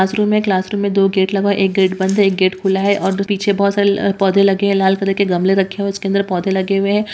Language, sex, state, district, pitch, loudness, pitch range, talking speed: Hindi, female, Bihar, Purnia, 195 Hz, -15 LUFS, 190-200 Hz, 310 wpm